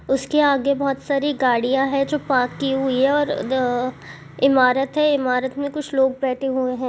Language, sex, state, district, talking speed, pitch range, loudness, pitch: Hindi, female, Chhattisgarh, Balrampur, 200 wpm, 255-280 Hz, -20 LUFS, 270 Hz